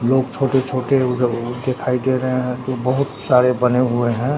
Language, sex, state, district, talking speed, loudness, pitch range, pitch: Hindi, male, Bihar, Katihar, 180 wpm, -19 LUFS, 125-130 Hz, 125 Hz